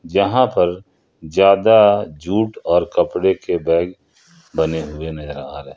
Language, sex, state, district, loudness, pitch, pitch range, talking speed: Hindi, male, Jharkhand, Ranchi, -17 LUFS, 90 Hz, 80-105 Hz, 125 wpm